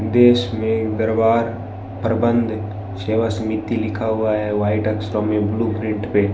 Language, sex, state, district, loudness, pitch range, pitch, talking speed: Hindi, male, Rajasthan, Bikaner, -19 LUFS, 105-115 Hz, 110 Hz, 140 wpm